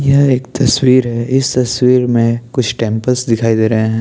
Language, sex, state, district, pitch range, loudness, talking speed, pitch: Hindi, male, Maharashtra, Chandrapur, 115-130 Hz, -13 LUFS, 195 wpm, 125 Hz